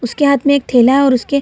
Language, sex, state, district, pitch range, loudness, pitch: Hindi, female, Bihar, Gaya, 245-280 Hz, -12 LUFS, 275 Hz